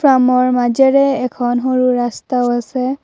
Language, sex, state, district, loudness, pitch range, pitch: Assamese, female, Assam, Kamrup Metropolitan, -15 LUFS, 245-260 Hz, 255 Hz